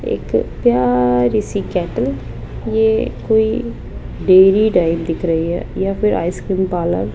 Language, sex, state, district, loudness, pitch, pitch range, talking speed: Hindi, female, Rajasthan, Jaipur, -16 LUFS, 175 Hz, 125-210 Hz, 135 wpm